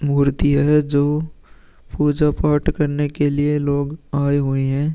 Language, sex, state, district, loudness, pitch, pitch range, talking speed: Hindi, male, Uttar Pradesh, Muzaffarnagar, -19 LUFS, 145 Hz, 140-150 Hz, 145 wpm